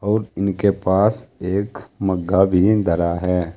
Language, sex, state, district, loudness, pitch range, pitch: Hindi, male, Uttar Pradesh, Saharanpur, -19 LUFS, 90-100 Hz, 95 Hz